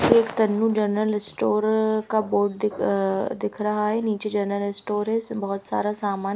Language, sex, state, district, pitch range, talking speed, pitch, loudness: Hindi, female, Haryana, Rohtak, 200-215 Hz, 190 wpm, 210 Hz, -23 LUFS